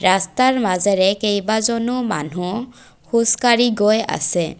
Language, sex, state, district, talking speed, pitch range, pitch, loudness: Assamese, female, Assam, Kamrup Metropolitan, 90 wpm, 190-235 Hz, 220 Hz, -18 LUFS